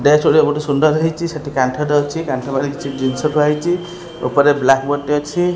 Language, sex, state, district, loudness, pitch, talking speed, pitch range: Odia, male, Odisha, Khordha, -16 LUFS, 150 Hz, 205 wpm, 140-160 Hz